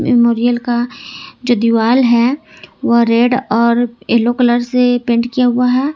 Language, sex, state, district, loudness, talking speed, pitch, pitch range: Hindi, female, Jharkhand, Ranchi, -13 LUFS, 150 wpm, 240 Hz, 235-250 Hz